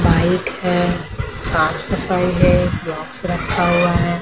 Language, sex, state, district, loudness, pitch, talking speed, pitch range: Hindi, male, Maharashtra, Mumbai Suburban, -18 LUFS, 175 Hz, 140 wpm, 175-180 Hz